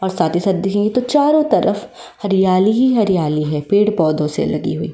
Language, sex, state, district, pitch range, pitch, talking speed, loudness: Hindi, female, Uttar Pradesh, Varanasi, 170-215 Hz, 195 Hz, 205 wpm, -16 LUFS